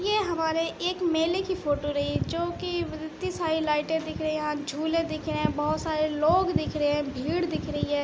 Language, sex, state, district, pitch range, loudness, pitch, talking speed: Hindi, female, Uttar Pradesh, Budaun, 300-345 Hz, -27 LUFS, 320 Hz, 225 wpm